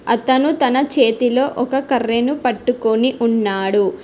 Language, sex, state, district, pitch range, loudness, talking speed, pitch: Telugu, female, Telangana, Hyderabad, 230-265 Hz, -17 LUFS, 105 wpm, 245 Hz